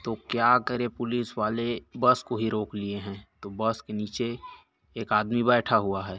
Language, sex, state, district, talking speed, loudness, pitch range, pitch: Chhattisgarhi, male, Chhattisgarh, Korba, 195 wpm, -27 LUFS, 105-120 Hz, 115 Hz